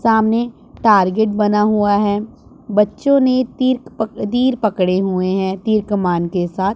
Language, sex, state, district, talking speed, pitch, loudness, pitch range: Hindi, male, Punjab, Pathankot, 160 wpm, 210 Hz, -16 LUFS, 195-230 Hz